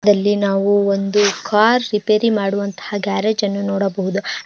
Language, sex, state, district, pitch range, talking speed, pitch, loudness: Kannada, female, Karnataka, Dharwad, 195-210 Hz, 120 wpm, 200 Hz, -17 LUFS